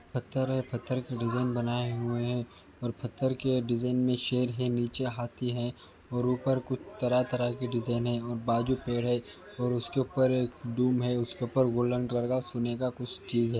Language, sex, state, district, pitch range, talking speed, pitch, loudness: Hindi, male, Uttar Pradesh, Ghazipur, 120-125 Hz, 190 wpm, 125 Hz, -31 LUFS